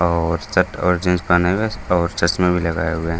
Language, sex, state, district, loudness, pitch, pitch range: Hindi, male, Bihar, Gaya, -19 LUFS, 90 Hz, 85-90 Hz